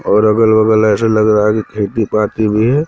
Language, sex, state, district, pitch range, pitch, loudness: Hindi, male, Madhya Pradesh, Katni, 105-110 Hz, 110 Hz, -12 LUFS